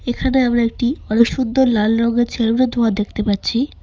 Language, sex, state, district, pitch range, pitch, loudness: Bengali, female, West Bengal, Cooch Behar, 225-250 Hz, 235 Hz, -17 LUFS